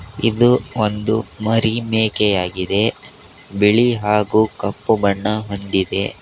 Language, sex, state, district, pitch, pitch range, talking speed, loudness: Kannada, male, Karnataka, Koppal, 105 Hz, 100-110 Hz, 85 wpm, -18 LUFS